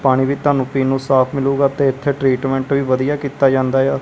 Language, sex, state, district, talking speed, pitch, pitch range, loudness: Punjabi, male, Punjab, Kapurthala, 225 wpm, 135 Hz, 130-140 Hz, -16 LUFS